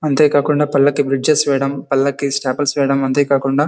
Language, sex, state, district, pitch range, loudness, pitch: Telugu, male, Karnataka, Bellary, 135-145 Hz, -16 LUFS, 140 Hz